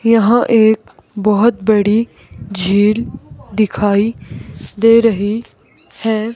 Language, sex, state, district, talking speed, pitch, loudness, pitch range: Hindi, female, Himachal Pradesh, Shimla, 85 wpm, 215 Hz, -14 LUFS, 205-230 Hz